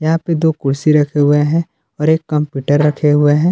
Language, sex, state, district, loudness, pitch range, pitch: Hindi, male, Jharkhand, Palamu, -14 LUFS, 145-160 Hz, 150 Hz